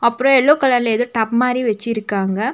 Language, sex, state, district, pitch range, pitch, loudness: Tamil, female, Tamil Nadu, Nilgiris, 220-250 Hz, 235 Hz, -16 LUFS